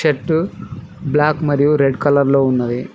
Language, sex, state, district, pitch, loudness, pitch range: Telugu, male, Telangana, Mahabubabad, 145 Hz, -16 LUFS, 135-155 Hz